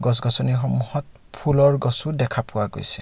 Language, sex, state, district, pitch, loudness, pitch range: Assamese, male, Assam, Kamrup Metropolitan, 125 Hz, -19 LUFS, 110-140 Hz